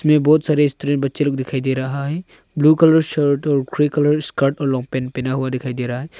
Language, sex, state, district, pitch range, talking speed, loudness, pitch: Hindi, male, Arunachal Pradesh, Longding, 130-150 Hz, 250 wpm, -18 LUFS, 140 Hz